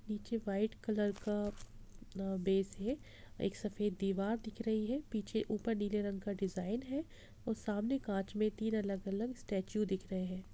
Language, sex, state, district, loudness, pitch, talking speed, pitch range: Hindi, female, Bihar, Gopalganj, -38 LUFS, 210 Hz, 170 wpm, 195-220 Hz